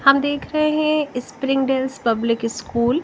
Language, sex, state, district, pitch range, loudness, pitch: Hindi, female, Punjab, Kapurthala, 235-290 Hz, -20 LUFS, 270 Hz